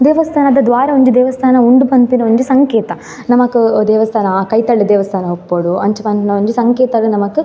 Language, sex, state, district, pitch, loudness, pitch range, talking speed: Tulu, female, Karnataka, Dakshina Kannada, 235 Hz, -11 LUFS, 205-255 Hz, 160 wpm